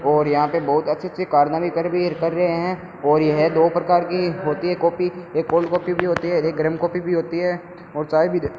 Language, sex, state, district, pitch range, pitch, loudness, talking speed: Hindi, male, Rajasthan, Bikaner, 160-180 Hz, 170 Hz, -20 LUFS, 240 wpm